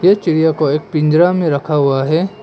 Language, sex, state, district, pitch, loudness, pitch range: Hindi, male, Arunachal Pradesh, Papum Pare, 160 Hz, -14 LUFS, 150-175 Hz